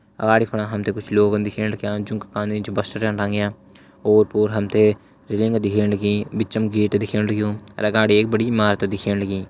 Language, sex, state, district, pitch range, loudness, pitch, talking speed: Hindi, male, Uttarakhand, Uttarkashi, 105-110 Hz, -20 LUFS, 105 Hz, 210 wpm